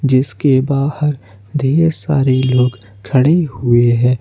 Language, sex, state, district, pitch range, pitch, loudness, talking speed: Hindi, male, Jharkhand, Ranchi, 120-145 Hz, 130 Hz, -14 LUFS, 115 wpm